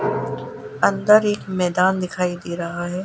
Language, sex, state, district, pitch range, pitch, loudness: Hindi, female, Gujarat, Gandhinagar, 175-200 Hz, 180 Hz, -20 LUFS